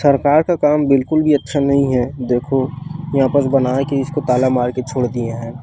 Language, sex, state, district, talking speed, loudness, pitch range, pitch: Chhattisgarhi, female, Chhattisgarh, Rajnandgaon, 215 wpm, -16 LUFS, 125-145 Hz, 135 Hz